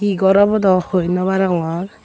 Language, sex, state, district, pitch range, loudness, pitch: Chakma, female, Tripura, Dhalai, 180-200 Hz, -16 LUFS, 190 Hz